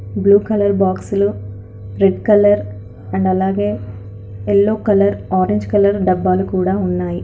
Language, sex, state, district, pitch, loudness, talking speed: Telugu, female, Telangana, Karimnagar, 180 Hz, -15 LUFS, 115 wpm